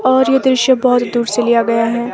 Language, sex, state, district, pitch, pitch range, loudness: Hindi, female, Himachal Pradesh, Shimla, 245 Hz, 235-260 Hz, -13 LUFS